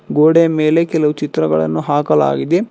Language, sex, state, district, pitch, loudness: Kannada, male, Karnataka, Bangalore, 150 Hz, -14 LUFS